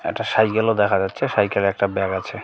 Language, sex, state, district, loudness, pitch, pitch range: Bengali, male, West Bengal, Cooch Behar, -20 LUFS, 100 Hz, 95-110 Hz